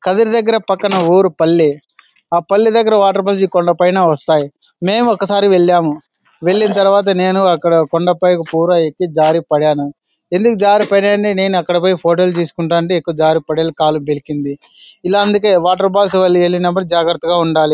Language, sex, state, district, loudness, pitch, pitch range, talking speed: Telugu, male, Andhra Pradesh, Anantapur, -13 LUFS, 180 Hz, 165-195 Hz, 155 wpm